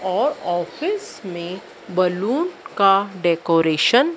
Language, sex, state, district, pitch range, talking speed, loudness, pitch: Hindi, female, Madhya Pradesh, Dhar, 175-245 Hz, 100 wpm, -20 LUFS, 185 Hz